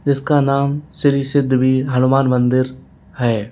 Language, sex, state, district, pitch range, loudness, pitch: Hindi, male, Uttar Pradesh, Lalitpur, 130-140 Hz, -16 LUFS, 135 Hz